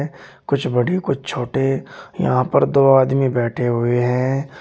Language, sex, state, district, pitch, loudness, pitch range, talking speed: Hindi, male, Uttar Pradesh, Shamli, 135 Hz, -18 LUFS, 125-140 Hz, 145 wpm